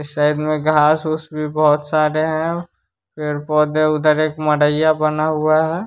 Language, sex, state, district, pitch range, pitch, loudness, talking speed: Hindi, male, Bihar, West Champaran, 150-155 Hz, 155 Hz, -17 LUFS, 175 wpm